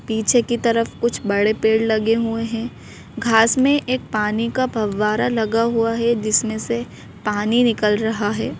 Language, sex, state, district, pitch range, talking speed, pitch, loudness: Hindi, female, Madhya Pradesh, Bhopal, 215-235 Hz, 165 wpm, 225 Hz, -19 LUFS